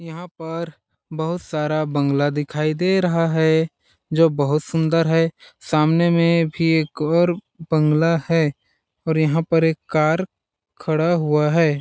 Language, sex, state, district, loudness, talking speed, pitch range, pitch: Hindi, male, Chhattisgarh, Balrampur, -19 LUFS, 140 wpm, 155-165 Hz, 160 Hz